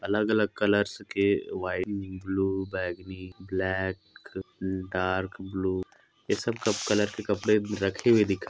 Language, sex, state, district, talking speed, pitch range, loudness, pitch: Hindi, male, Chhattisgarh, Korba, 125 wpm, 95-105 Hz, -28 LUFS, 95 Hz